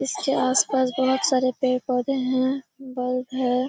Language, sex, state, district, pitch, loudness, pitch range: Hindi, female, Bihar, Kishanganj, 260 Hz, -23 LUFS, 255-265 Hz